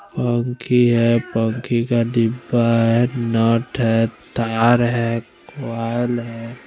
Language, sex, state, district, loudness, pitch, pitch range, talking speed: Hindi, male, Chandigarh, Chandigarh, -19 LUFS, 115 Hz, 115-120 Hz, 100 wpm